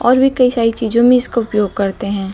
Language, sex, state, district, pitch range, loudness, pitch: Hindi, female, Uttar Pradesh, Lucknow, 200-245 Hz, -14 LUFS, 230 Hz